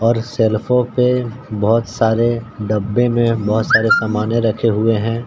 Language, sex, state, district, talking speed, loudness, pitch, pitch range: Hindi, male, Uttar Pradesh, Ghazipur, 150 wpm, -16 LUFS, 115 Hz, 110-120 Hz